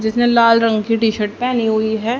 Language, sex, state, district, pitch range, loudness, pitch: Hindi, female, Haryana, Charkhi Dadri, 220-235 Hz, -16 LUFS, 225 Hz